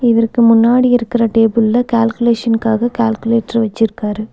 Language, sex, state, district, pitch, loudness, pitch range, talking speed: Tamil, female, Tamil Nadu, Nilgiris, 230 Hz, -13 LUFS, 225-235 Hz, 95 wpm